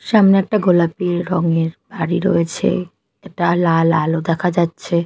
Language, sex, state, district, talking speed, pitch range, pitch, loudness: Bengali, female, Odisha, Malkangiri, 140 wpm, 165-180 Hz, 170 Hz, -17 LUFS